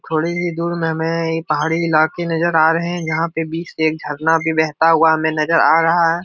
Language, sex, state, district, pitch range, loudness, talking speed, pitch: Hindi, male, Uttar Pradesh, Etah, 160-165 Hz, -17 LUFS, 240 wpm, 165 Hz